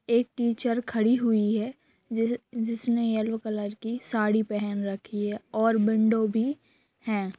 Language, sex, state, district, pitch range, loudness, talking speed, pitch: Hindi, female, Bihar, Sitamarhi, 215-235 Hz, -27 LUFS, 145 wpm, 225 Hz